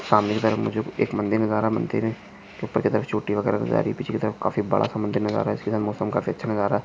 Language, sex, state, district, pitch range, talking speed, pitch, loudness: Hindi, male, Maharashtra, Chandrapur, 105-110 Hz, 350 wpm, 105 Hz, -24 LUFS